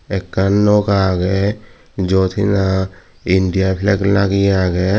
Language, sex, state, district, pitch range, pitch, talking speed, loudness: Chakma, male, Tripura, Dhalai, 95-100 Hz, 95 Hz, 110 wpm, -16 LUFS